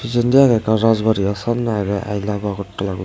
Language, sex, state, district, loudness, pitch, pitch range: Chakma, male, Tripura, West Tripura, -18 LUFS, 105 Hz, 100-120 Hz